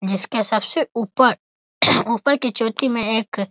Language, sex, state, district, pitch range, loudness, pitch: Hindi, male, Bihar, East Champaran, 220-250 Hz, -17 LUFS, 230 Hz